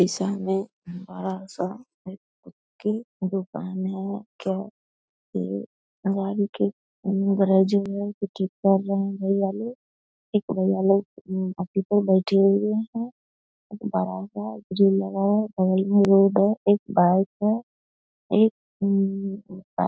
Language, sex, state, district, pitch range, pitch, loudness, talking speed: Hindi, female, Bihar, Vaishali, 190-205 Hz, 195 Hz, -24 LUFS, 80 wpm